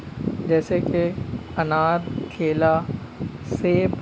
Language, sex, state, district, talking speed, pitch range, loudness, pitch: Hindi, male, Uttar Pradesh, Jalaun, 90 wpm, 155-170 Hz, -23 LUFS, 160 Hz